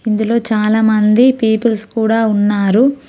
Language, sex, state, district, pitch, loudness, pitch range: Telugu, female, Telangana, Mahabubabad, 220 Hz, -13 LUFS, 215-230 Hz